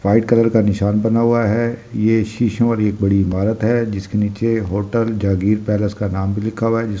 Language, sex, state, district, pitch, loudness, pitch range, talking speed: Hindi, male, Delhi, New Delhi, 110 Hz, -17 LUFS, 100-115 Hz, 230 wpm